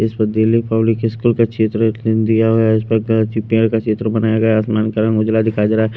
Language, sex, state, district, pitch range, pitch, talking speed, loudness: Hindi, male, Punjab, Pathankot, 110-115 Hz, 110 Hz, 260 wpm, -16 LUFS